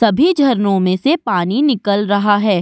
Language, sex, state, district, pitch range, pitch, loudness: Hindi, female, Uttar Pradesh, Budaun, 200-270 Hz, 205 Hz, -14 LUFS